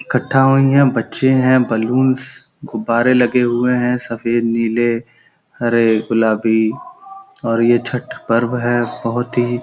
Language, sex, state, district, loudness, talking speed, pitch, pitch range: Hindi, male, Uttar Pradesh, Gorakhpur, -16 LUFS, 135 wpm, 120 Hz, 115-130 Hz